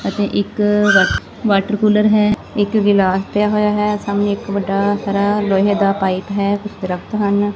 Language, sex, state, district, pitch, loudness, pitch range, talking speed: Punjabi, female, Punjab, Fazilka, 205 Hz, -16 LUFS, 200-210 Hz, 165 wpm